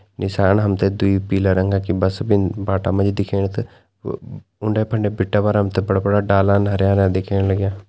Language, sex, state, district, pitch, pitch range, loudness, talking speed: Garhwali, male, Uttarakhand, Tehri Garhwal, 100 Hz, 95-100 Hz, -18 LUFS, 165 wpm